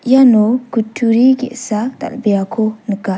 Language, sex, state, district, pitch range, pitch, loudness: Garo, female, Meghalaya, South Garo Hills, 215-250 Hz, 230 Hz, -14 LUFS